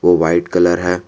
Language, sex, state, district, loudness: Hindi, male, Jharkhand, Garhwa, -14 LUFS